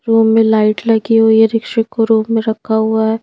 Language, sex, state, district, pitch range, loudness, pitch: Hindi, female, Madhya Pradesh, Bhopal, 220-225 Hz, -13 LUFS, 225 Hz